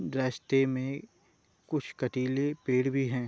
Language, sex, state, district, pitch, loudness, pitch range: Hindi, male, Uttar Pradesh, Hamirpur, 130 Hz, -31 LUFS, 130-135 Hz